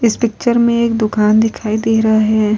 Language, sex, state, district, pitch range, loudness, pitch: Hindi, female, Bihar, Vaishali, 215-230 Hz, -14 LUFS, 220 Hz